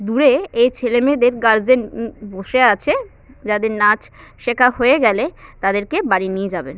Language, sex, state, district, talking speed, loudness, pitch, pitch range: Bengali, female, West Bengal, Purulia, 140 wpm, -16 LUFS, 230 Hz, 210-250 Hz